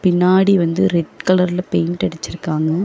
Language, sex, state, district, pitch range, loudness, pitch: Tamil, female, Tamil Nadu, Chennai, 160-185 Hz, -17 LUFS, 180 Hz